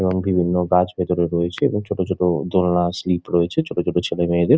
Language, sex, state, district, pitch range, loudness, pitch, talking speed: Bengali, male, West Bengal, Jhargram, 85-95 Hz, -20 LUFS, 90 Hz, 195 wpm